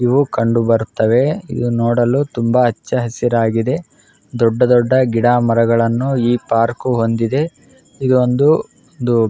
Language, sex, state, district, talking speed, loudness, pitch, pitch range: Kannada, male, Karnataka, Raichur, 115 wpm, -16 LUFS, 120 Hz, 115-130 Hz